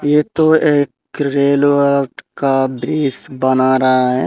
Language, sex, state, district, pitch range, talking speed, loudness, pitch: Hindi, male, Tripura, Unakoti, 130-145 Hz, 125 wpm, -15 LUFS, 140 Hz